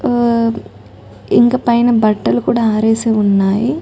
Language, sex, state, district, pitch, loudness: Telugu, female, Telangana, Nalgonda, 220 Hz, -13 LUFS